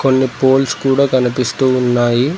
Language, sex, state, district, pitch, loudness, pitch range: Telugu, male, Telangana, Mahabubabad, 130 Hz, -14 LUFS, 125-135 Hz